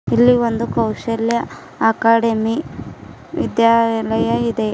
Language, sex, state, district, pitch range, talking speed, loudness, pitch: Kannada, female, Karnataka, Bidar, 225-235 Hz, 75 wpm, -17 LUFS, 230 Hz